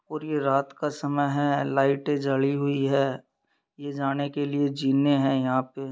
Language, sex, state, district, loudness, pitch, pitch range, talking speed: Hindi, female, Bihar, Darbhanga, -25 LUFS, 140 Hz, 135-145 Hz, 190 wpm